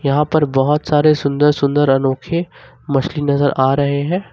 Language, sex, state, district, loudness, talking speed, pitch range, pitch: Hindi, male, Jharkhand, Ranchi, -16 LUFS, 165 wpm, 140-150 Hz, 145 Hz